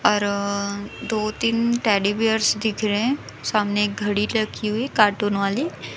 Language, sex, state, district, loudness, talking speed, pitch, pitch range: Hindi, female, Chhattisgarh, Raipur, -22 LUFS, 130 wpm, 210 Hz, 205-225 Hz